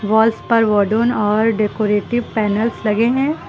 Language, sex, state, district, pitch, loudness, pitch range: Hindi, female, Uttar Pradesh, Lucknow, 220 Hz, -17 LUFS, 210-230 Hz